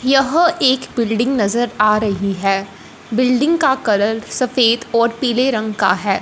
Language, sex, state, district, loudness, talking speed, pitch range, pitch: Hindi, female, Punjab, Fazilka, -16 LUFS, 155 wpm, 210-255 Hz, 235 Hz